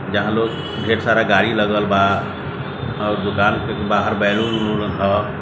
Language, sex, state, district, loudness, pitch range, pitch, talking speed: Hindi, male, Bihar, Gopalganj, -18 LUFS, 100-110 Hz, 105 Hz, 165 wpm